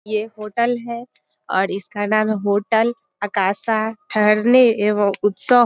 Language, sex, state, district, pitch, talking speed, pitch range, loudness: Hindi, female, Bihar, Muzaffarpur, 215 Hz, 140 wpm, 205-235 Hz, -19 LUFS